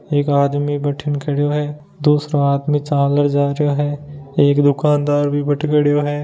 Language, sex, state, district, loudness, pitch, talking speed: Hindi, male, Rajasthan, Nagaur, -17 LUFS, 145 Hz, 175 wpm